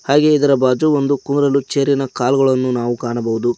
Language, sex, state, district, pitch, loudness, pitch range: Kannada, male, Karnataka, Koppal, 135 Hz, -16 LUFS, 125-140 Hz